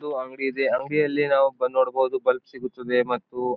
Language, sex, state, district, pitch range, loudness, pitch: Kannada, male, Karnataka, Bijapur, 125-145 Hz, -24 LUFS, 130 Hz